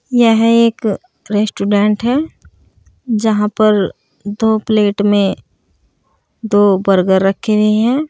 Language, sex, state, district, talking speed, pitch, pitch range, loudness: Hindi, female, Uttar Pradesh, Saharanpur, 105 wpm, 215 Hz, 205-225 Hz, -14 LUFS